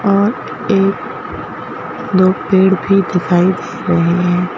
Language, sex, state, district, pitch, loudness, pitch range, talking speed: Hindi, female, Madhya Pradesh, Bhopal, 190 Hz, -15 LUFS, 180-200 Hz, 120 wpm